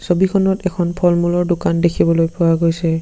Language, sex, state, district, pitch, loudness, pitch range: Assamese, male, Assam, Sonitpur, 175 Hz, -16 LUFS, 165-180 Hz